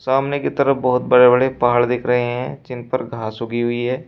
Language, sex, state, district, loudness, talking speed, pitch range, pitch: Hindi, male, Uttar Pradesh, Shamli, -18 LUFS, 235 wpm, 120-130 Hz, 125 Hz